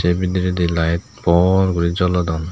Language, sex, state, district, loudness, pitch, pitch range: Chakma, male, Tripura, Unakoti, -18 LUFS, 90 Hz, 85-90 Hz